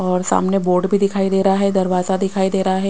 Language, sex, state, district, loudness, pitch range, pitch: Hindi, female, Bihar, West Champaran, -17 LUFS, 185-195 Hz, 190 Hz